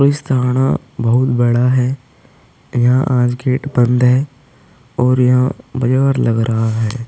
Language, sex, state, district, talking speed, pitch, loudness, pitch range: Hindi, male, Uttar Pradesh, Hamirpur, 135 wpm, 125 Hz, -15 LUFS, 120-130 Hz